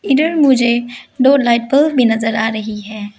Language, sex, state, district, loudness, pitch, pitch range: Hindi, female, Arunachal Pradesh, Lower Dibang Valley, -14 LUFS, 240 Hz, 225-275 Hz